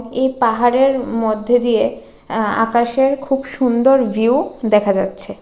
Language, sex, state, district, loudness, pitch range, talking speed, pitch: Bengali, female, Tripura, West Tripura, -16 LUFS, 225-265 Hz, 120 wpm, 245 Hz